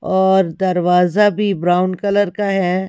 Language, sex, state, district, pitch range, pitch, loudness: Hindi, female, Haryana, Rohtak, 180-200 Hz, 190 Hz, -16 LUFS